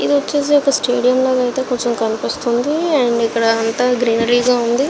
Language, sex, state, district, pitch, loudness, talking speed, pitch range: Telugu, female, Andhra Pradesh, Visakhapatnam, 250 Hz, -16 LUFS, 160 wpm, 235-275 Hz